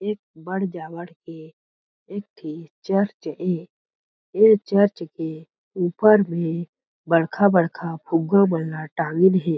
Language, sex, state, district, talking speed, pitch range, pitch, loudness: Chhattisgarhi, male, Chhattisgarh, Jashpur, 115 wpm, 165-200 Hz, 170 Hz, -21 LUFS